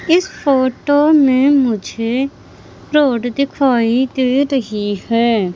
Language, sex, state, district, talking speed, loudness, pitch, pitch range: Hindi, female, Madhya Pradesh, Katni, 95 wpm, -15 LUFS, 260 Hz, 235-280 Hz